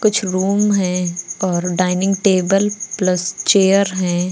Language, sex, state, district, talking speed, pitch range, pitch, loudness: Hindi, female, Uttar Pradesh, Lucknow, 125 wpm, 180-200 Hz, 190 Hz, -17 LUFS